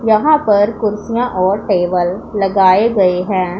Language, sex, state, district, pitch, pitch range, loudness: Hindi, female, Punjab, Pathankot, 200 Hz, 185-215 Hz, -14 LUFS